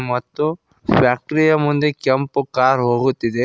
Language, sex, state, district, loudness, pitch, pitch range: Kannada, male, Karnataka, Koppal, -18 LUFS, 130 Hz, 125-150 Hz